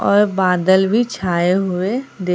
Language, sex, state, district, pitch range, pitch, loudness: Hindi, female, Bihar, Katihar, 180-205 Hz, 190 Hz, -17 LUFS